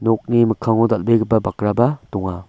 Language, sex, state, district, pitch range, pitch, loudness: Garo, male, Meghalaya, West Garo Hills, 105-115 Hz, 115 Hz, -18 LUFS